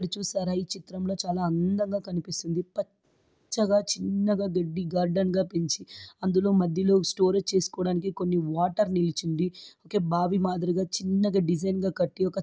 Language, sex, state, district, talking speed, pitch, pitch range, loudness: Telugu, female, Andhra Pradesh, Guntur, 105 wpm, 185 Hz, 175-195 Hz, -27 LUFS